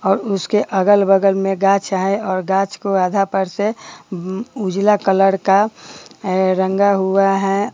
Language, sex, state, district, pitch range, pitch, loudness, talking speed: Hindi, female, Bihar, Bhagalpur, 190-200 Hz, 195 Hz, -16 LUFS, 155 wpm